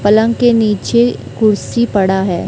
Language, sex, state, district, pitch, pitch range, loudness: Hindi, female, Chhattisgarh, Raipur, 215 Hz, 200-235 Hz, -13 LUFS